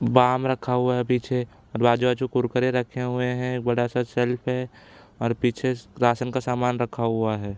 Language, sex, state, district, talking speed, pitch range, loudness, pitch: Hindi, male, Chhattisgarh, Bilaspur, 165 wpm, 120-125 Hz, -24 LUFS, 125 Hz